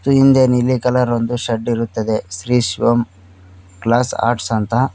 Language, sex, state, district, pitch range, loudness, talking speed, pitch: Kannada, male, Karnataka, Koppal, 110-125 Hz, -16 LUFS, 135 wpm, 120 Hz